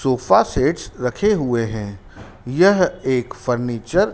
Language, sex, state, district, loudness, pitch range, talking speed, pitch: Hindi, male, Madhya Pradesh, Dhar, -19 LUFS, 110-140 Hz, 115 wpm, 125 Hz